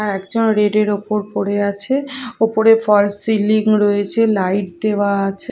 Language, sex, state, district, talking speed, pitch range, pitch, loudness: Bengali, female, Odisha, Khordha, 140 wpm, 200-225 Hz, 210 Hz, -16 LUFS